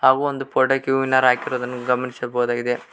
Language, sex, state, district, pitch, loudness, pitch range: Kannada, male, Karnataka, Koppal, 130 Hz, -20 LUFS, 125-135 Hz